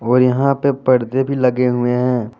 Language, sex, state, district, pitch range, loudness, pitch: Hindi, male, Jharkhand, Deoghar, 125-135 Hz, -16 LUFS, 125 Hz